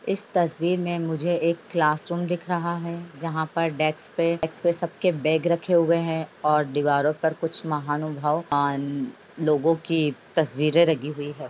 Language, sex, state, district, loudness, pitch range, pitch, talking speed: Hindi, female, Chhattisgarh, Raigarh, -24 LUFS, 150-170 Hz, 160 Hz, 155 wpm